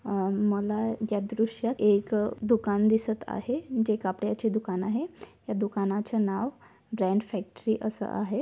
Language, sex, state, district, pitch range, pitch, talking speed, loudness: Marathi, female, Maharashtra, Aurangabad, 205-225 Hz, 215 Hz, 140 wpm, -28 LUFS